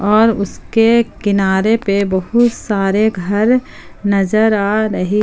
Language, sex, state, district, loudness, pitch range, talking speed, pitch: Hindi, female, Jharkhand, Palamu, -14 LUFS, 200-220 Hz, 115 wpm, 210 Hz